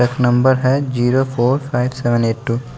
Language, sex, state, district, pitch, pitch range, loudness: Hindi, male, Bihar, West Champaran, 125 Hz, 120-130 Hz, -16 LUFS